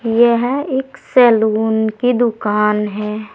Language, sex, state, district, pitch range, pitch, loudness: Hindi, female, Uttar Pradesh, Saharanpur, 215-245 Hz, 225 Hz, -15 LUFS